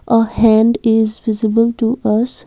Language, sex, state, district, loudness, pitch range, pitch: English, female, Assam, Kamrup Metropolitan, -14 LUFS, 220-230 Hz, 225 Hz